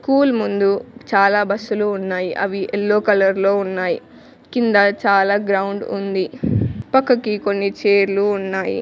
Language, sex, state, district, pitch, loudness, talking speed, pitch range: Telugu, female, Telangana, Mahabubabad, 200 Hz, -18 LUFS, 120 wpm, 195-210 Hz